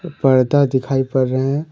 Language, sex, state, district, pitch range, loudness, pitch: Hindi, male, Jharkhand, Deoghar, 130-145 Hz, -17 LUFS, 135 Hz